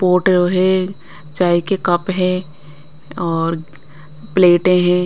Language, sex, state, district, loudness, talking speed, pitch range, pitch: Hindi, female, Bihar, West Champaran, -16 LUFS, 105 wpm, 155-185 Hz, 175 Hz